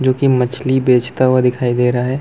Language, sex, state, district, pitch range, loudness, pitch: Hindi, male, Chhattisgarh, Balrampur, 125-130 Hz, -15 LUFS, 130 Hz